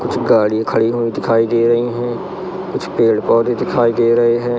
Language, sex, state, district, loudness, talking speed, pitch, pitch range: Hindi, male, Madhya Pradesh, Katni, -16 LUFS, 195 wpm, 115 Hz, 115-120 Hz